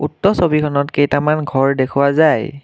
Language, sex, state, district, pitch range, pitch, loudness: Assamese, male, Assam, Kamrup Metropolitan, 140-155 Hz, 145 Hz, -15 LUFS